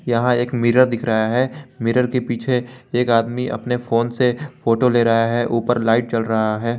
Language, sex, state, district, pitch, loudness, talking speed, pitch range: Hindi, male, Jharkhand, Garhwa, 120 Hz, -19 LUFS, 205 wpm, 115-125 Hz